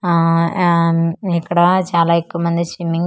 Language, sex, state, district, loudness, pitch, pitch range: Telugu, female, Andhra Pradesh, Manyam, -16 LUFS, 170 Hz, 170-175 Hz